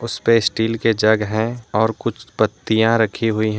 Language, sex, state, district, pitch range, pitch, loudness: Hindi, male, Jharkhand, Deoghar, 110-115 Hz, 110 Hz, -18 LUFS